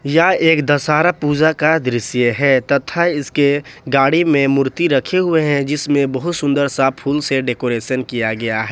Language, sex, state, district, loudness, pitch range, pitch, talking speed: Hindi, male, Jharkhand, Ranchi, -16 LUFS, 130-155 Hz, 140 Hz, 170 wpm